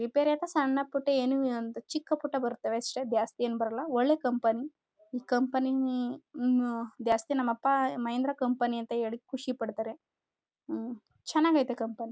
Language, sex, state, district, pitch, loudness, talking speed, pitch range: Kannada, female, Karnataka, Chamarajanagar, 250 Hz, -30 LUFS, 160 wpm, 235-275 Hz